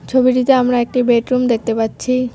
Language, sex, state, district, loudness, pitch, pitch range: Bengali, female, West Bengal, Cooch Behar, -15 LUFS, 250 Hz, 235-255 Hz